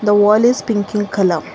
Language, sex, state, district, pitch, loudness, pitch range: English, female, Karnataka, Bangalore, 205 Hz, -15 LUFS, 200-215 Hz